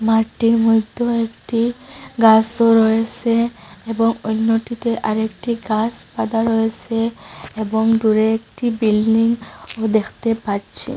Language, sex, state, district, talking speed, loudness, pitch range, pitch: Bengali, female, Assam, Hailakandi, 100 wpm, -18 LUFS, 220-230 Hz, 225 Hz